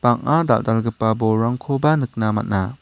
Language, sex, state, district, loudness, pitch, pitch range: Garo, male, Meghalaya, West Garo Hills, -19 LUFS, 115 Hz, 110-130 Hz